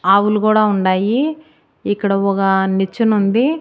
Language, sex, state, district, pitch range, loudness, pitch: Telugu, female, Andhra Pradesh, Annamaya, 195-220 Hz, -16 LUFS, 205 Hz